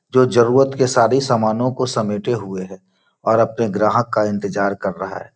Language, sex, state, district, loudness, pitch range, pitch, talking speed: Hindi, male, Bihar, Gopalganj, -18 LUFS, 105-125 Hz, 115 Hz, 190 wpm